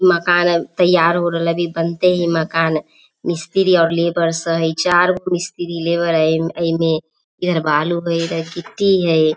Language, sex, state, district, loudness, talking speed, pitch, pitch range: Maithili, female, Bihar, Samastipur, -17 LUFS, 145 wpm, 170 Hz, 165-175 Hz